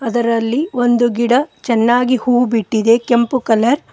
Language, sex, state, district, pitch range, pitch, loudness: Kannada, female, Karnataka, Koppal, 230-250 Hz, 240 Hz, -15 LUFS